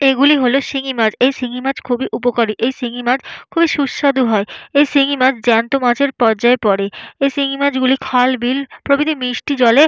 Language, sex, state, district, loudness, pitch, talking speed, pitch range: Bengali, female, West Bengal, Jalpaiguri, -15 LUFS, 260 Hz, 195 wpm, 245-275 Hz